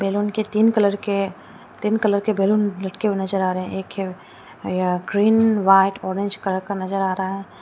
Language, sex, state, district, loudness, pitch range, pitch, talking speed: Hindi, female, Arunachal Pradesh, Lower Dibang Valley, -21 LUFS, 190-210 Hz, 195 Hz, 215 wpm